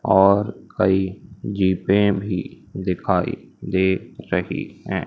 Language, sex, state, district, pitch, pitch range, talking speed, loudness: Hindi, male, Madhya Pradesh, Umaria, 95 Hz, 95-100 Hz, 95 wpm, -21 LUFS